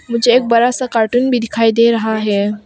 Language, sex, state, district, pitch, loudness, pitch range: Hindi, female, Arunachal Pradesh, Papum Pare, 230 Hz, -14 LUFS, 220-245 Hz